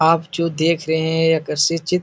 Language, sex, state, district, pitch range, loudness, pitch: Hindi, male, Bihar, Supaul, 160-165 Hz, -18 LUFS, 165 Hz